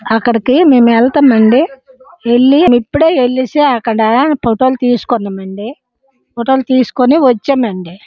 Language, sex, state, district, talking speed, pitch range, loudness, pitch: Telugu, female, Andhra Pradesh, Srikakulam, 110 wpm, 230-270 Hz, -11 LUFS, 250 Hz